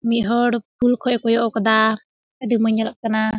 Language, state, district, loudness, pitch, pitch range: Surjapuri, Bihar, Kishanganj, -19 LUFS, 230 Hz, 220-235 Hz